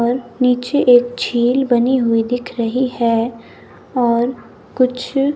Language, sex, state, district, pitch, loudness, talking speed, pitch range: Hindi, male, Himachal Pradesh, Shimla, 245 Hz, -16 LUFS, 125 wpm, 235-255 Hz